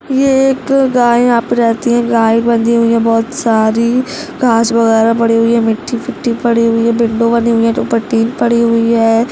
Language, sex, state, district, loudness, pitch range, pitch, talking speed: Hindi, female, Rajasthan, Nagaur, -12 LUFS, 230-240 Hz, 230 Hz, 195 wpm